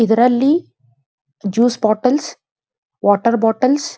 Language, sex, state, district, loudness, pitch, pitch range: Kannada, female, Karnataka, Dharwad, -16 LUFS, 230 Hz, 205-255 Hz